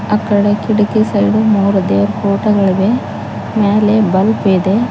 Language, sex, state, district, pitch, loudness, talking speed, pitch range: Kannada, female, Karnataka, Koppal, 205 Hz, -13 LUFS, 135 wpm, 200-215 Hz